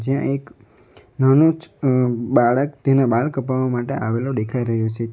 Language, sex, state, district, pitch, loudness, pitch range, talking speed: Gujarati, male, Gujarat, Valsad, 130 Hz, -19 LUFS, 120-135 Hz, 165 wpm